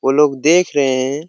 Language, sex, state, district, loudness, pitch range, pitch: Hindi, male, Jharkhand, Jamtara, -14 LUFS, 135-150 Hz, 145 Hz